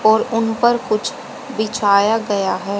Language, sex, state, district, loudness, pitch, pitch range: Hindi, female, Haryana, Jhajjar, -17 LUFS, 220 Hz, 205-230 Hz